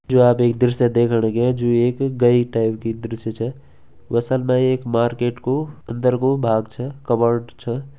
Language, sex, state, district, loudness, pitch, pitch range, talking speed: Garhwali, male, Uttarakhand, Tehri Garhwal, -19 LUFS, 120 Hz, 115-125 Hz, 180 wpm